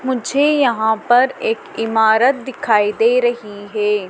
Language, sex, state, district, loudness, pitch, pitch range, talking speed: Hindi, female, Madhya Pradesh, Dhar, -16 LUFS, 240 Hz, 220-265 Hz, 130 wpm